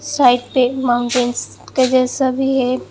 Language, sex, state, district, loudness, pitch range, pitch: Hindi, female, Assam, Hailakandi, -16 LUFS, 245-265 Hz, 255 Hz